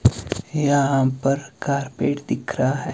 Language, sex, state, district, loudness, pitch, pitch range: Hindi, male, Himachal Pradesh, Shimla, -22 LUFS, 140 Hz, 130-140 Hz